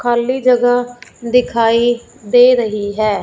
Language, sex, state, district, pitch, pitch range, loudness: Hindi, female, Punjab, Fazilka, 240 Hz, 230-245 Hz, -14 LUFS